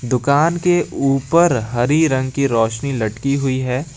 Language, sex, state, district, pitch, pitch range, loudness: Hindi, male, Jharkhand, Garhwa, 135 Hz, 125-145 Hz, -17 LUFS